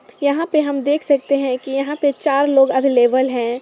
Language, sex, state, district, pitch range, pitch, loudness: Hindi, female, Jharkhand, Sahebganj, 260-285 Hz, 275 Hz, -17 LUFS